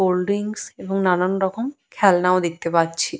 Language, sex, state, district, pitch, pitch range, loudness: Bengali, female, West Bengal, Purulia, 185 Hz, 180-195 Hz, -21 LUFS